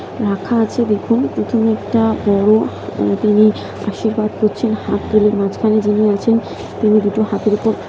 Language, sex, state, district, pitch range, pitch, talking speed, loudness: Bengali, female, West Bengal, Kolkata, 210-225 Hz, 215 Hz, 130 wpm, -16 LUFS